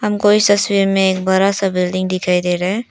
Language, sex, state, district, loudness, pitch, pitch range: Hindi, female, Arunachal Pradesh, Papum Pare, -15 LUFS, 195 Hz, 185-205 Hz